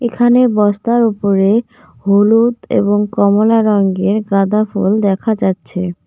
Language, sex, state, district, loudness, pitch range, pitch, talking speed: Bengali, female, West Bengal, Cooch Behar, -13 LUFS, 195-225 Hz, 210 Hz, 100 wpm